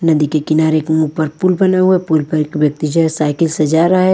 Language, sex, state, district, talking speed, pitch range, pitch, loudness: Hindi, female, Odisha, Nuapada, 275 wpm, 155-175 Hz, 160 Hz, -14 LUFS